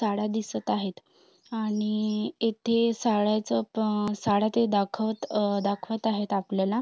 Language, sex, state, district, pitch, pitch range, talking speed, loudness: Marathi, female, Maharashtra, Sindhudurg, 215 Hz, 205-220 Hz, 115 wpm, -27 LUFS